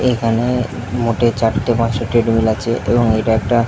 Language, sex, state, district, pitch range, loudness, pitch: Bengali, male, West Bengal, Jhargram, 115-120 Hz, -16 LUFS, 115 Hz